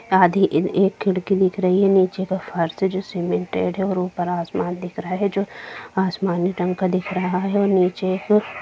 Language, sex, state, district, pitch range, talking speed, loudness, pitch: Hindi, female, Jharkhand, Jamtara, 180-195 Hz, 190 wpm, -21 LUFS, 190 Hz